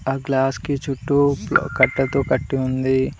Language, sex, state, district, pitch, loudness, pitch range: Telugu, male, Telangana, Mahabubabad, 135 Hz, -20 LUFS, 130-140 Hz